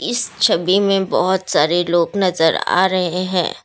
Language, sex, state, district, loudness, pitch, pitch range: Hindi, female, Assam, Kamrup Metropolitan, -16 LUFS, 185 Hz, 175-190 Hz